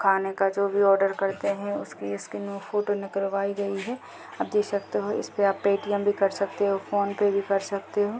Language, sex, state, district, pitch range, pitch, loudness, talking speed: Hindi, female, Uttar Pradesh, Deoria, 195-205 Hz, 200 Hz, -26 LUFS, 210 wpm